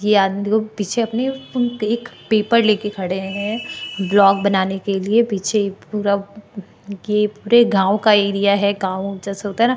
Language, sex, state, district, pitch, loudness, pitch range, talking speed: Hindi, female, Maharashtra, Chandrapur, 205 Hz, -18 LUFS, 200-220 Hz, 170 wpm